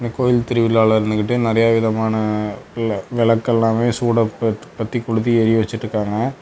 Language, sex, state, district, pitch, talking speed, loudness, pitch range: Tamil, male, Tamil Nadu, Namakkal, 115 Hz, 105 wpm, -18 LUFS, 110-120 Hz